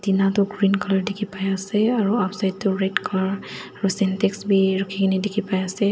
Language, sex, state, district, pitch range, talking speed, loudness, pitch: Nagamese, female, Nagaland, Dimapur, 190-205 Hz, 160 wpm, -22 LUFS, 195 Hz